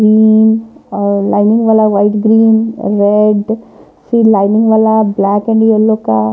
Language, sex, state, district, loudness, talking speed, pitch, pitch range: Hindi, female, Punjab, Pathankot, -10 LUFS, 135 wpm, 215 Hz, 205-220 Hz